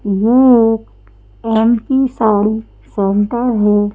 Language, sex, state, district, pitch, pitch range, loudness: Hindi, female, Madhya Pradesh, Bhopal, 220 Hz, 205-235 Hz, -13 LUFS